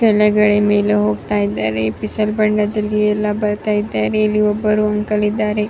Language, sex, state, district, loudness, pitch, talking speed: Kannada, female, Karnataka, Raichur, -16 LUFS, 210 Hz, 95 wpm